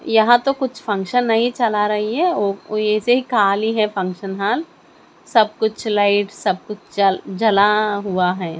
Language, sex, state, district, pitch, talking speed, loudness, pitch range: Hindi, female, Chandigarh, Chandigarh, 210 Hz, 160 wpm, -18 LUFS, 200-230 Hz